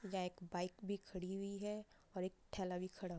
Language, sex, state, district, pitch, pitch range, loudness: Hindi, female, Uttar Pradesh, Budaun, 185 Hz, 180-200 Hz, -46 LUFS